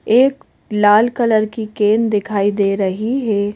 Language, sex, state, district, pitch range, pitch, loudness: Hindi, female, Madhya Pradesh, Bhopal, 205-230 Hz, 215 Hz, -16 LUFS